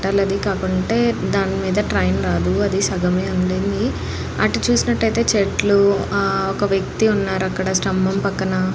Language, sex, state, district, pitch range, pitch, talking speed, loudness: Telugu, female, Andhra Pradesh, Anantapur, 180-200 Hz, 190 Hz, 135 wpm, -19 LUFS